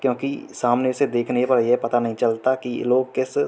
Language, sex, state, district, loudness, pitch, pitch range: Hindi, male, Uttar Pradesh, Hamirpur, -21 LUFS, 125 Hz, 120-130 Hz